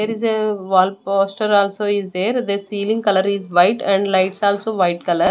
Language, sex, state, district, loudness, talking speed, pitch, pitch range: English, female, Haryana, Rohtak, -18 LUFS, 205 wpm, 200 Hz, 190-210 Hz